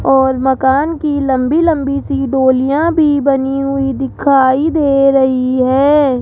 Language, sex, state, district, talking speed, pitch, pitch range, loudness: Hindi, male, Rajasthan, Jaipur, 135 wpm, 275 Hz, 265-290 Hz, -13 LUFS